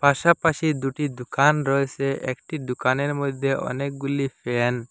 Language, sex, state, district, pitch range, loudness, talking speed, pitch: Bengali, male, Assam, Hailakandi, 130-145 Hz, -23 LUFS, 120 wpm, 140 Hz